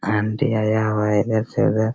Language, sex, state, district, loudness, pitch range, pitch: Hindi, male, Chhattisgarh, Raigarh, -20 LUFS, 105-110 Hz, 110 Hz